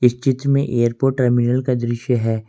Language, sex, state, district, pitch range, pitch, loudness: Hindi, male, Jharkhand, Ranchi, 120-135 Hz, 125 Hz, -18 LUFS